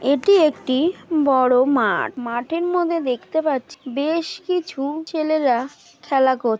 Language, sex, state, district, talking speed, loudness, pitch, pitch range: Bengali, female, West Bengal, Malda, 125 wpm, -20 LUFS, 285 Hz, 255-330 Hz